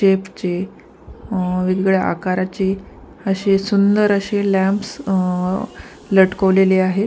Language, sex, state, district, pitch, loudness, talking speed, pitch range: Marathi, female, Maharashtra, Pune, 190 Hz, -18 LUFS, 70 wpm, 185-200 Hz